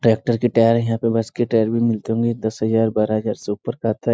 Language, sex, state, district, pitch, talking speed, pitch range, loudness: Hindi, male, Bihar, Sitamarhi, 115 Hz, 290 wpm, 110-115 Hz, -20 LUFS